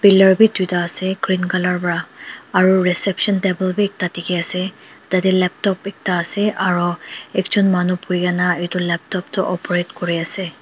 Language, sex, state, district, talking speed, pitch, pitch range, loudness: Nagamese, female, Nagaland, Dimapur, 165 wpm, 185 Hz, 175-190 Hz, -18 LUFS